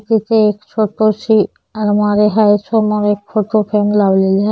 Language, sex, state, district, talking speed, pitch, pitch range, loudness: Marathi, female, Maharashtra, Chandrapur, 160 wpm, 210 Hz, 205-215 Hz, -14 LUFS